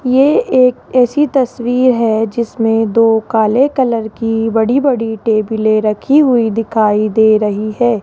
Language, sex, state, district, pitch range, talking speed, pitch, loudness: Hindi, female, Rajasthan, Jaipur, 220-250 Hz, 140 wpm, 225 Hz, -13 LUFS